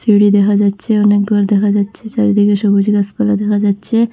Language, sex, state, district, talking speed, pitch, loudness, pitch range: Bengali, female, Assam, Hailakandi, 175 wpm, 205 Hz, -13 LUFS, 205-210 Hz